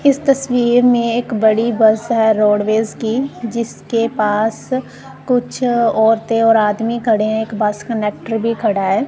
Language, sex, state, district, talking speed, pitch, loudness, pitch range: Hindi, female, Punjab, Kapurthala, 150 wpm, 225 Hz, -16 LUFS, 220-240 Hz